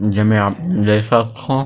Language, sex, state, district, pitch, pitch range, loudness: Chhattisgarhi, male, Chhattisgarh, Sarguja, 105 Hz, 105-115 Hz, -16 LUFS